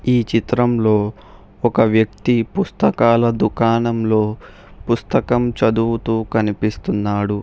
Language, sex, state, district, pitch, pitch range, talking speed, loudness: Telugu, male, Telangana, Hyderabad, 110 Hz, 105-115 Hz, 75 wpm, -18 LUFS